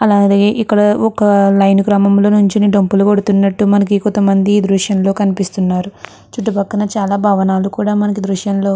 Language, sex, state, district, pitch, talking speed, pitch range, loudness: Telugu, female, Andhra Pradesh, Chittoor, 200 Hz, 150 wpm, 195-205 Hz, -13 LUFS